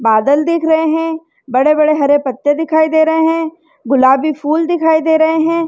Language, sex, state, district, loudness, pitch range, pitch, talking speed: Hindi, female, Chhattisgarh, Rajnandgaon, -13 LUFS, 290-325 Hz, 315 Hz, 190 wpm